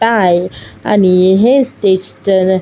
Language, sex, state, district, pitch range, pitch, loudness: Marathi, female, Maharashtra, Aurangabad, 180-210 Hz, 190 Hz, -11 LUFS